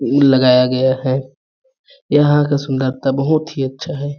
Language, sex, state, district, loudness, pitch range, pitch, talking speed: Hindi, male, Chhattisgarh, Balrampur, -15 LUFS, 130-145 Hz, 140 Hz, 145 wpm